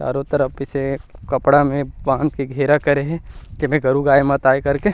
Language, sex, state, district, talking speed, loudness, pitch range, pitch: Chhattisgarhi, male, Chhattisgarh, Rajnandgaon, 205 wpm, -18 LUFS, 135-145 Hz, 140 Hz